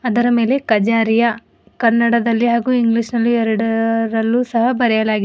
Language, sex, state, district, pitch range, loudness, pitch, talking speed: Kannada, female, Karnataka, Bidar, 225-235 Hz, -16 LUFS, 230 Hz, 115 wpm